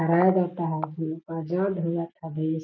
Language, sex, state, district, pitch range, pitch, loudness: Hindi, female, Bihar, Gaya, 160-175 Hz, 165 Hz, -27 LUFS